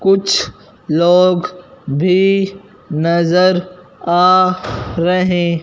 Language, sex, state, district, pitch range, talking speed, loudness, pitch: Hindi, male, Punjab, Fazilka, 170-185 Hz, 65 wpm, -14 LUFS, 180 Hz